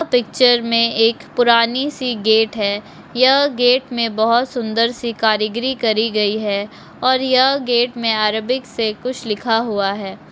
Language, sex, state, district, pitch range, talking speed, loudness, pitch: Hindi, female, Uttarakhand, Tehri Garhwal, 220-250 Hz, 155 wpm, -17 LUFS, 230 Hz